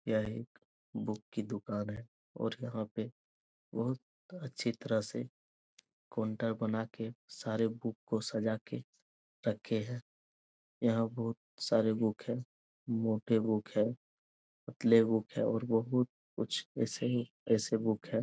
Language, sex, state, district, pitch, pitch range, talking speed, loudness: Hindi, male, Bihar, Jahanabad, 115 Hz, 110-115 Hz, 140 wpm, -35 LUFS